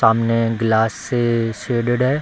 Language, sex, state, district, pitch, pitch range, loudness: Hindi, female, Bihar, Samastipur, 115 Hz, 115-120 Hz, -19 LUFS